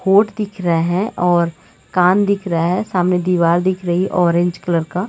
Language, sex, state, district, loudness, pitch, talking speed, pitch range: Hindi, female, Chhattisgarh, Raigarh, -17 LUFS, 180 Hz, 190 wpm, 175-190 Hz